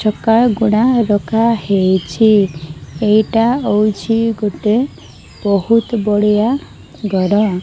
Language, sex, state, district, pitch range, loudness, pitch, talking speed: Odia, female, Odisha, Malkangiri, 200-225 Hz, -14 LUFS, 215 Hz, 70 wpm